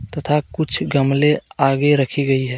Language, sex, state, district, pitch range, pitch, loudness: Hindi, male, Jharkhand, Deoghar, 135-150 Hz, 140 Hz, -18 LUFS